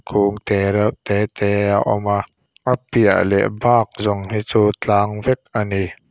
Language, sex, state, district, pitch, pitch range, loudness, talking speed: Mizo, male, Mizoram, Aizawl, 105 Hz, 100-110 Hz, -18 LUFS, 175 wpm